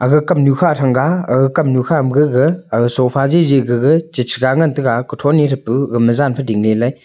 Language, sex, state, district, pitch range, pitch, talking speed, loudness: Wancho, male, Arunachal Pradesh, Longding, 125-150 Hz, 135 Hz, 215 wpm, -14 LUFS